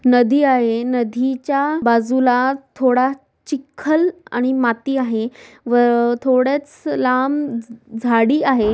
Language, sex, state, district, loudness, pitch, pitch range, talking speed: Marathi, female, Maharashtra, Sindhudurg, -17 LUFS, 255 Hz, 240-275 Hz, 115 wpm